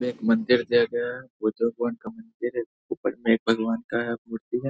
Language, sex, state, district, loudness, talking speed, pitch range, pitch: Hindi, male, Bihar, Saharsa, -26 LUFS, 245 wpm, 115-125 Hz, 120 Hz